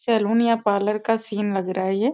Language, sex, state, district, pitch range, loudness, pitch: Hindi, female, Bihar, East Champaran, 200-225 Hz, -22 LUFS, 210 Hz